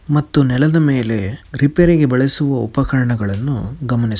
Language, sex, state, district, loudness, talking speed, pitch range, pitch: Kannada, male, Karnataka, Chamarajanagar, -16 LUFS, 115 wpm, 120-145 Hz, 135 Hz